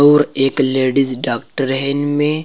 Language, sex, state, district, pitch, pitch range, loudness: Hindi, male, Uttar Pradesh, Saharanpur, 135 Hz, 130-145 Hz, -16 LUFS